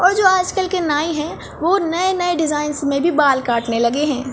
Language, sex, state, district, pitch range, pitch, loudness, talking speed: Hindi, female, Chhattisgarh, Balrampur, 280-365 Hz, 310 Hz, -18 LUFS, 195 wpm